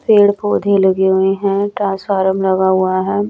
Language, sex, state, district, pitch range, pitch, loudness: Hindi, female, Chandigarh, Chandigarh, 190-205 Hz, 195 Hz, -14 LUFS